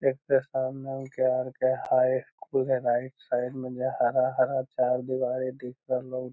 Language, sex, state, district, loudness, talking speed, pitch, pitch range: Magahi, male, Bihar, Lakhisarai, -28 LUFS, 105 wpm, 130 Hz, 125-130 Hz